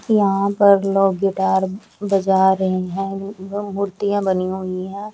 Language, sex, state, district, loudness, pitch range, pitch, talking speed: Hindi, female, Bihar, Patna, -19 LUFS, 190-200 Hz, 195 Hz, 140 wpm